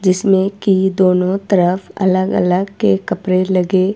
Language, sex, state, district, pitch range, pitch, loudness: Hindi, female, Himachal Pradesh, Shimla, 185-195 Hz, 185 Hz, -15 LUFS